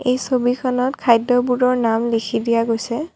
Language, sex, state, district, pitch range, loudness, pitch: Assamese, female, Assam, Kamrup Metropolitan, 230-255 Hz, -18 LUFS, 245 Hz